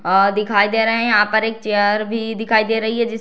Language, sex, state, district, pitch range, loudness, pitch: Hindi, female, Bihar, Darbhanga, 210-225 Hz, -17 LUFS, 220 Hz